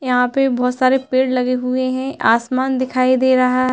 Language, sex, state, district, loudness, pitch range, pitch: Hindi, female, Uttar Pradesh, Hamirpur, -17 LUFS, 250-260 Hz, 255 Hz